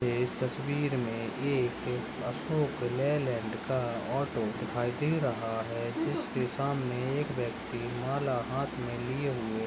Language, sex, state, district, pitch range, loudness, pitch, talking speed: Hindi, male, Maharashtra, Solapur, 120-140 Hz, -32 LUFS, 125 Hz, 130 wpm